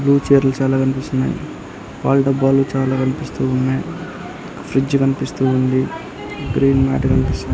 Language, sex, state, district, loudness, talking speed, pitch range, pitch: Telugu, male, Andhra Pradesh, Anantapur, -17 LUFS, 125 wpm, 130-135 Hz, 135 Hz